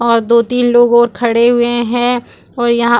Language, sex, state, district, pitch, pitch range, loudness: Hindi, female, Chhattisgarh, Rajnandgaon, 240 Hz, 235-240 Hz, -12 LUFS